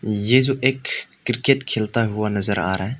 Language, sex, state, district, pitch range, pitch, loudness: Hindi, male, Arunachal Pradesh, Papum Pare, 105-130 Hz, 115 Hz, -21 LUFS